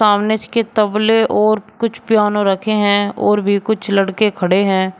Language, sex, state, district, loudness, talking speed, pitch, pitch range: Hindi, male, Uttar Pradesh, Shamli, -15 LUFS, 170 wpm, 210 Hz, 200-215 Hz